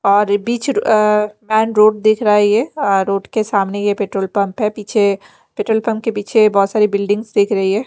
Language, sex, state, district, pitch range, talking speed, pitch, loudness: Hindi, female, Bihar, Patna, 200-220 Hz, 220 wpm, 210 Hz, -15 LUFS